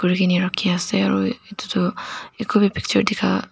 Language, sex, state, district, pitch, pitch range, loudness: Nagamese, female, Nagaland, Dimapur, 185 Hz, 180-210 Hz, -20 LUFS